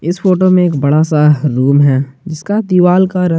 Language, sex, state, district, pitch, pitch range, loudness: Hindi, male, Jharkhand, Garhwa, 165 Hz, 145-185 Hz, -11 LUFS